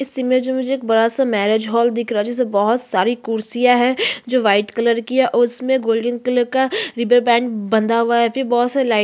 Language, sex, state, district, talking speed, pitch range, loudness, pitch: Hindi, female, Chhattisgarh, Sukma, 185 wpm, 225-255 Hz, -17 LUFS, 240 Hz